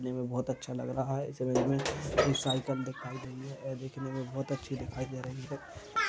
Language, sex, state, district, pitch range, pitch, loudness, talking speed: Hindi, male, Maharashtra, Nagpur, 130-135 Hz, 130 Hz, -34 LUFS, 215 wpm